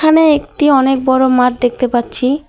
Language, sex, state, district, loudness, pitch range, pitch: Bengali, female, West Bengal, Alipurduar, -12 LUFS, 250-295 Hz, 260 Hz